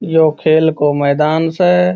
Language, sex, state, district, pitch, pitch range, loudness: Marwari, male, Rajasthan, Churu, 160 Hz, 150-165 Hz, -13 LUFS